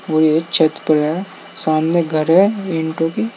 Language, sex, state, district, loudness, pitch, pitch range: Hindi, male, Uttar Pradesh, Saharanpur, -16 LUFS, 165 Hz, 155-190 Hz